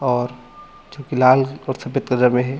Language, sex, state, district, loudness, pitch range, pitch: Hindi, male, Chhattisgarh, Bilaspur, -19 LUFS, 125-140 Hz, 130 Hz